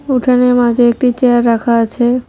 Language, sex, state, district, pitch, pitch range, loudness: Bengali, female, West Bengal, Cooch Behar, 245 Hz, 235-250 Hz, -12 LUFS